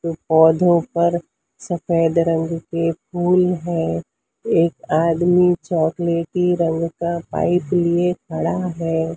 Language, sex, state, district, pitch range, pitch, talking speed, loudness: Hindi, female, Maharashtra, Mumbai Suburban, 165-175 Hz, 170 Hz, 105 wpm, -19 LUFS